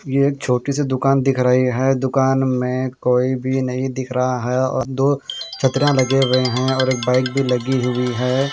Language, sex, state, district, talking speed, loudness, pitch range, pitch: Hindi, male, Haryana, Jhajjar, 190 wpm, -18 LUFS, 125-135 Hz, 130 Hz